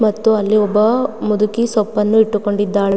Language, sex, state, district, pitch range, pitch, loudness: Kannada, female, Karnataka, Mysore, 210-220 Hz, 215 Hz, -15 LUFS